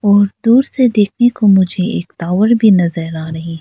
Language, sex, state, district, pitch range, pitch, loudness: Hindi, female, Arunachal Pradesh, Lower Dibang Valley, 170-225 Hz, 200 Hz, -13 LUFS